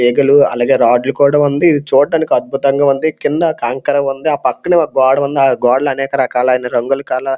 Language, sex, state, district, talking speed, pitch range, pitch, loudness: Telugu, male, Andhra Pradesh, Srikakulam, 205 wpm, 130-145 Hz, 140 Hz, -13 LUFS